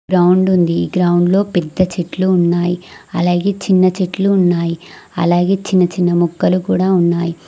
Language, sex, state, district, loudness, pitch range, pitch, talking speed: Telugu, female, Telangana, Mahabubabad, -15 LUFS, 175-185 Hz, 180 Hz, 135 wpm